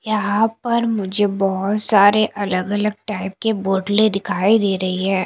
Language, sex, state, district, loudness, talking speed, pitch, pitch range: Hindi, female, Punjab, Kapurthala, -18 LUFS, 160 wpm, 205 Hz, 195-215 Hz